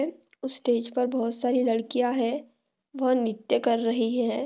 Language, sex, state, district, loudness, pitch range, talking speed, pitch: Hindi, female, Maharashtra, Dhule, -26 LUFS, 230-255 Hz, 160 wpm, 245 Hz